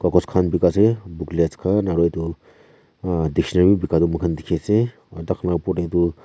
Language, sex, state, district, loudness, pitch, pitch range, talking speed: Nagamese, male, Nagaland, Kohima, -20 LUFS, 90 Hz, 85-95 Hz, 210 wpm